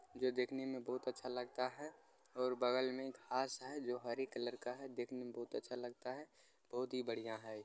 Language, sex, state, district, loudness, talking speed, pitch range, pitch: Hindi, male, Bihar, Supaul, -44 LUFS, 220 wpm, 125-130 Hz, 125 Hz